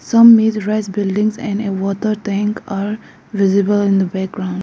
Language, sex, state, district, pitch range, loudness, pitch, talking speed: English, female, Arunachal Pradesh, Lower Dibang Valley, 195-215 Hz, -16 LUFS, 205 Hz, 170 wpm